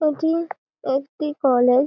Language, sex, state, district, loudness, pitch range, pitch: Bengali, female, West Bengal, Malda, -22 LUFS, 265-320 Hz, 295 Hz